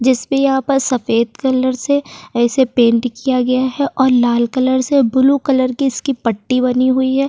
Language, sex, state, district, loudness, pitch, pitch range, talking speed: Hindi, female, Uttar Pradesh, Jyotiba Phule Nagar, -15 LUFS, 260 Hz, 250-270 Hz, 195 wpm